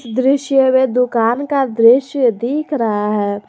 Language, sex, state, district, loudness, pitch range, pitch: Hindi, female, Jharkhand, Garhwa, -15 LUFS, 230-270 Hz, 250 Hz